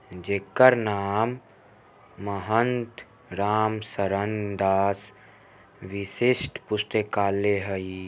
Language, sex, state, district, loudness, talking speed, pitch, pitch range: Maithili, male, Bihar, Samastipur, -25 LUFS, 75 wpm, 100 Hz, 100-115 Hz